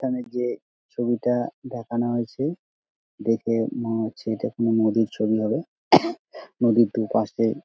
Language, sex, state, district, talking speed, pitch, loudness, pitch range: Bengali, male, West Bengal, Dakshin Dinajpur, 125 wpm, 115 Hz, -24 LUFS, 110-120 Hz